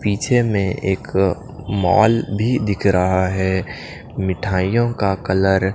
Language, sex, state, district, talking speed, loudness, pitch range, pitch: Hindi, male, Punjab, Pathankot, 125 wpm, -18 LUFS, 95-110 Hz, 95 Hz